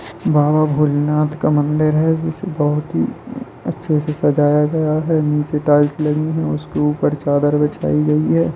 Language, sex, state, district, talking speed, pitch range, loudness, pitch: Hindi, male, Bihar, Jamui, 170 wpm, 145-155 Hz, -17 LUFS, 150 Hz